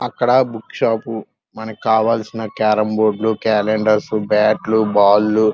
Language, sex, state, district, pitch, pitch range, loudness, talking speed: Telugu, male, Andhra Pradesh, Krishna, 110 Hz, 105-110 Hz, -16 LUFS, 120 wpm